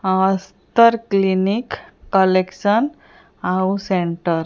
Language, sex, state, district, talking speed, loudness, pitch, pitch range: Odia, female, Odisha, Sambalpur, 80 wpm, -18 LUFS, 190 Hz, 185-205 Hz